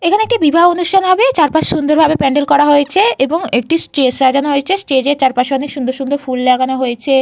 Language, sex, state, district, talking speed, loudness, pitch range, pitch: Bengali, female, West Bengal, Purulia, 205 wpm, -12 LUFS, 265-330 Hz, 285 Hz